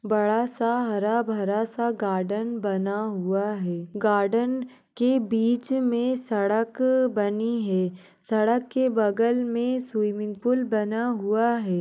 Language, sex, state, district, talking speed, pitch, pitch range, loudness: Hindi, female, Chhattisgarh, Balrampur, 120 wpm, 220 Hz, 205-240 Hz, -25 LUFS